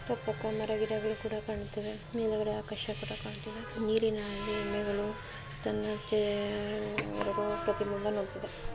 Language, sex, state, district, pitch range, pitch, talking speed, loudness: Kannada, female, Karnataka, Mysore, 205-215 Hz, 210 Hz, 80 wpm, -34 LUFS